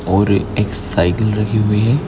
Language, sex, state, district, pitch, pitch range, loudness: Hindi, male, Maharashtra, Nagpur, 105 Hz, 100-110 Hz, -16 LUFS